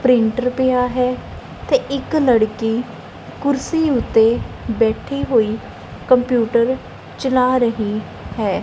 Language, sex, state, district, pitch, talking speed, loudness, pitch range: Punjabi, female, Punjab, Kapurthala, 250 Hz, 95 wpm, -18 LUFS, 225-260 Hz